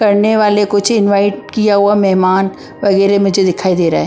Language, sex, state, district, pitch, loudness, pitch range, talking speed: Hindi, female, Punjab, Pathankot, 200 Hz, -12 LUFS, 190-205 Hz, 205 wpm